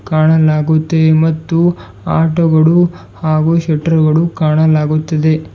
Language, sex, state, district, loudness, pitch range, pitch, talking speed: Kannada, male, Karnataka, Bidar, -12 LUFS, 155-165 Hz, 160 Hz, 85 wpm